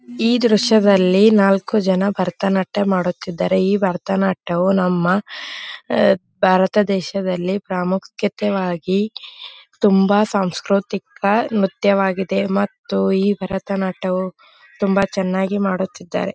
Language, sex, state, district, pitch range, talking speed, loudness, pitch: Kannada, female, Karnataka, Gulbarga, 185-205 Hz, 80 wpm, -18 LUFS, 195 Hz